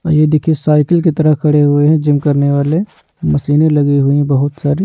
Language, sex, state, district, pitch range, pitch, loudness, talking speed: Hindi, male, Odisha, Nuapada, 145-155 Hz, 150 Hz, -12 LUFS, 210 wpm